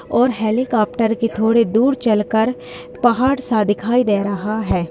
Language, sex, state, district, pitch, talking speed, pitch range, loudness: Hindi, female, Bihar, Madhepura, 225 Hz, 160 wpm, 215-245 Hz, -17 LUFS